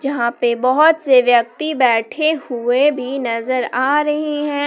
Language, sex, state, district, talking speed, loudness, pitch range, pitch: Hindi, female, Jharkhand, Palamu, 155 wpm, -16 LUFS, 245-295 Hz, 260 Hz